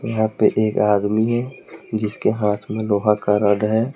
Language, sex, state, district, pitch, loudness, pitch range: Hindi, male, Jharkhand, Deoghar, 105 Hz, -19 LUFS, 105-110 Hz